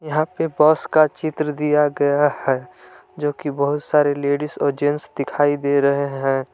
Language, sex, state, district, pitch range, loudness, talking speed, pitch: Hindi, male, Jharkhand, Palamu, 140-150 Hz, -19 LUFS, 175 wpm, 145 Hz